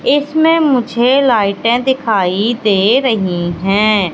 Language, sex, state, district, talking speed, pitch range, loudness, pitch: Hindi, female, Madhya Pradesh, Katni, 100 wpm, 200-260 Hz, -13 LUFS, 225 Hz